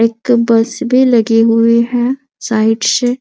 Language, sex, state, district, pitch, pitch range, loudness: Hindi, female, Bihar, Araria, 235 Hz, 225-250 Hz, -12 LUFS